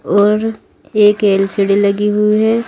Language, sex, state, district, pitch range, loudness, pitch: Hindi, female, Uttar Pradesh, Saharanpur, 200-215 Hz, -13 LUFS, 210 Hz